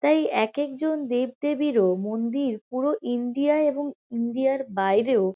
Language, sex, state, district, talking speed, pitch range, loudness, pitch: Bengali, female, West Bengal, Kolkata, 125 wpm, 230-290 Hz, -25 LUFS, 260 Hz